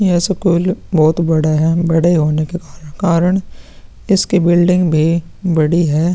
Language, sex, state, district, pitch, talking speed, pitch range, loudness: Hindi, male, Bihar, Vaishali, 170 Hz, 135 wpm, 155-180 Hz, -14 LUFS